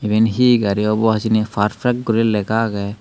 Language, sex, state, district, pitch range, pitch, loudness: Chakma, male, Tripura, Dhalai, 105-115 Hz, 110 Hz, -17 LUFS